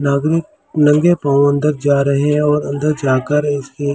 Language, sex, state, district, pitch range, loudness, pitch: Hindi, male, Delhi, New Delhi, 140-150 Hz, -15 LUFS, 145 Hz